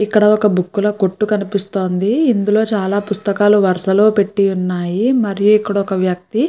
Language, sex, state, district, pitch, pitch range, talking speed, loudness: Telugu, female, Andhra Pradesh, Chittoor, 205 Hz, 190-210 Hz, 155 wpm, -15 LUFS